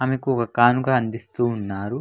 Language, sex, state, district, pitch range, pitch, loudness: Telugu, male, Andhra Pradesh, Anantapur, 115-130 Hz, 120 Hz, -22 LUFS